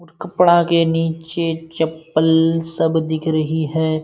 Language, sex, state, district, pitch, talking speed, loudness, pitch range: Hindi, male, Bihar, Supaul, 160 Hz, 135 wpm, -18 LUFS, 160-165 Hz